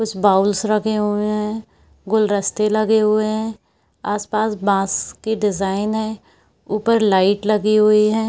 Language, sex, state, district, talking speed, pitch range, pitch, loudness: Hindi, female, Jharkhand, Sahebganj, 130 wpm, 205-215 Hz, 215 Hz, -18 LUFS